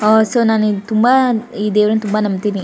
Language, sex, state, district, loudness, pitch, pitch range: Kannada, female, Karnataka, Shimoga, -15 LUFS, 215 Hz, 210-225 Hz